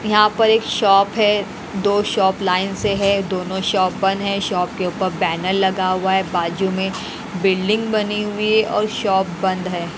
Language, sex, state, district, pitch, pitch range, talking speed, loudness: Hindi, female, Haryana, Rohtak, 195 Hz, 185-210 Hz, 185 wpm, -18 LUFS